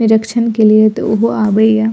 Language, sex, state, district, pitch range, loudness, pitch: Maithili, female, Bihar, Purnia, 215-225 Hz, -12 LUFS, 220 Hz